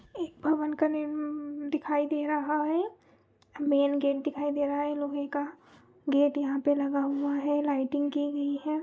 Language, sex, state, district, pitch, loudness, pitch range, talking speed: Hindi, female, Chhattisgarh, Raigarh, 290 Hz, -29 LUFS, 285-300 Hz, 170 wpm